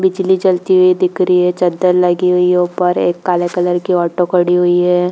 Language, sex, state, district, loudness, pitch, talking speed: Hindi, female, Jharkhand, Jamtara, -13 LUFS, 180 Hz, 225 wpm